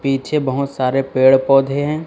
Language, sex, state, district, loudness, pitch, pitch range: Hindi, male, Chhattisgarh, Raipur, -16 LUFS, 135 Hz, 130-140 Hz